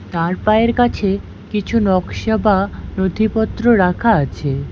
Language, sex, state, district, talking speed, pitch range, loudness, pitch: Bengali, female, West Bengal, Alipurduar, 115 wpm, 185-220 Hz, -17 LUFS, 210 Hz